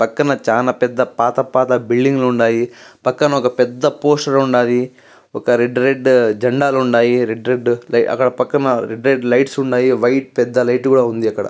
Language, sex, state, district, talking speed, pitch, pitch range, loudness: Telugu, male, Andhra Pradesh, Guntur, 160 wpm, 125 Hz, 120-135 Hz, -15 LUFS